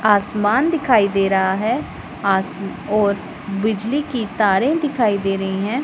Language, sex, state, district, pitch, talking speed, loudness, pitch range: Hindi, female, Punjab, Pathankot, 205 Hz, 145 wpm, -19 LUFS, 195-235 Hz